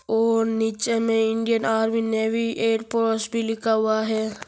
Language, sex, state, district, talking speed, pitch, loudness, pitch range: Marwari, female, Rajasthan, Nagaur, 175 wpm, 225 Hz, -22 LUFS, 220-225 Hz